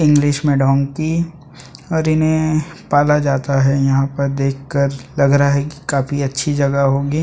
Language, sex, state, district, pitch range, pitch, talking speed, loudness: Hindi, male, Chhattisgarh, Sukma, 135-150 Hz, 140 Hz, 165 wpm, -17 LUFS